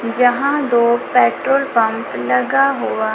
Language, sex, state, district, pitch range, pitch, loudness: Hindi, female, Chhattisgarh, Raipur, 225-275 Hz, 235 Hz, -16 LUFS